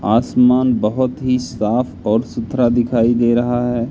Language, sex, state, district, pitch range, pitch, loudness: Hindi, male, Madhya Pradesh, Katni, 115-125 Hz, 120 Hz, -16 LUFS